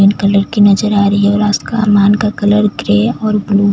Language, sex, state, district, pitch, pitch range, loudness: Hindi, female, Chhattisgarh, Jashpur, 205 Hz, 200-210 Hz, -12 LUFS